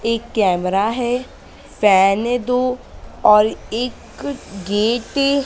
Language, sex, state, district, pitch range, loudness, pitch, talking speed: Hindi, female, Madhya Pradesh, Dhar, 205-250 Hz, -18 LUFS, 230 Hz, 110 wpm